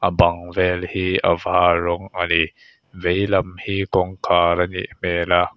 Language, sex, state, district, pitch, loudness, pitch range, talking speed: Mizo, male, Mizoram, Aizawl, 90 Hz, -20 LUFS, 85-95 Hz, 150 wpm